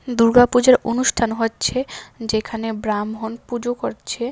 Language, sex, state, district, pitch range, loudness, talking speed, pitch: Bengali, female, Tripura, West Tripura, 225-245 Hz, -19 LUFS, 95 wpm, 230 Hz